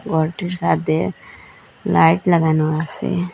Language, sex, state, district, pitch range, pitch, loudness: Bengali, female, Assam, Hailakandi, 160-180 Hz, 165 Hz, -18 LUFS